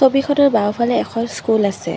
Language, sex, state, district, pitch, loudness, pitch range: Assamese, female, Assam, Kamrup Metropolitan, 235 Hz, -17 LUFS, 220-270 Hz